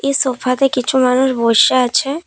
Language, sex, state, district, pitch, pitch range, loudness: Bengali, female, Assam, Kamrup Metropolitan, 260 Hz, 250-270 Hz, -14 LUFS